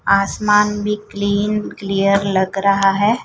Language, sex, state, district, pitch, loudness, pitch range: Hindi, female, Chhattisgarh, Raipur, 200 Hz, -17 LUFS, 195-210 Hz